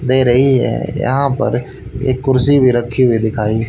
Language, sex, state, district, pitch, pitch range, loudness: Hindi, male, Haryana, Rohtak, 130 Hz, 120-135 Hz, -14 LUFS